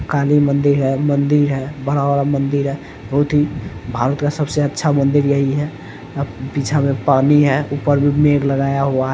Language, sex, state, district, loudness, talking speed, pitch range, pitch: Hindi, male, Bihar, Araria, -17 LUFS, 190 wpm, 140-145 Hz, 140 Hz